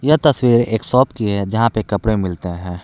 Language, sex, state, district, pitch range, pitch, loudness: Hindi, male, Jharkhand, Palamu, 100-125 Hz, 110 Hz, -17 LUFS